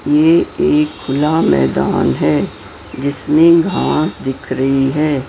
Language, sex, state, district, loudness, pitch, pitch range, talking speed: Hindi, female, Maharashtra, Mumbai Suburban, -14 LUFS, 140 Hz, 130-155 Hz, 115 wpm